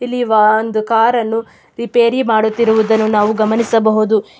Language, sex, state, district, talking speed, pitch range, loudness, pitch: Kannada, female, Karnataka, Mysore, 110 wpm, 215-235 Hz, -14 LUFS, 220 Hz